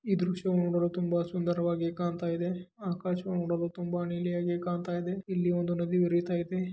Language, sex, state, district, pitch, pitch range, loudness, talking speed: Kannada, male, Karnataka, Dharwad, 175 Hz, 175-180 Hz, -31 LUFS, 160 wpm